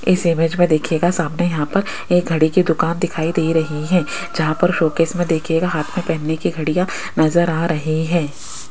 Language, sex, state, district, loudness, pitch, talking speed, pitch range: Hindi, female, Rajasthan, Jaipur, -18 LUFS, 165 Hz, 200 wpm, 160-175 Hz